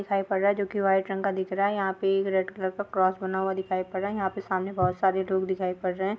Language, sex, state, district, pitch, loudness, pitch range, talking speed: Hindi, female, Chhattisgarh, Korba, 190 Hz, -27 LUFS, 190-195 Hz, 340 wpm